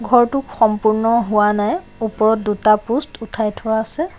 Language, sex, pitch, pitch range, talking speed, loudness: Assamese, female, 220 Hz, 215-240 Hz, 145 wpm, -17 LUFS